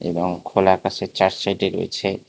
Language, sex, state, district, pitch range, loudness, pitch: Bengali, male, Tripura, West Tripura, 90-100 Hz, -21 LUFS, 95 Hz